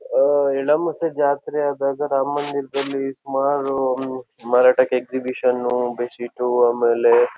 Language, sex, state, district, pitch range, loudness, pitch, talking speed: Kannada, male, Karnataka, Shimoga, 125-145 Hz, -20 LUFS, 135 Hz, 115 wpm